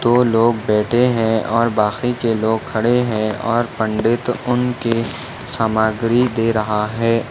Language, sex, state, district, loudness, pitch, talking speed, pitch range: Hindi, male, Maharashtra, Nagpur, -17 LUFS, 115 Hz, 140 wpm, 110-120 Hz